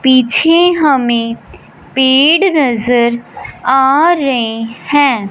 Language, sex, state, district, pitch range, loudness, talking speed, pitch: Hindi, male, Punjab, Fazilka, 235-290 Hz, -11 LUFS, 80 wpm, 260 Hz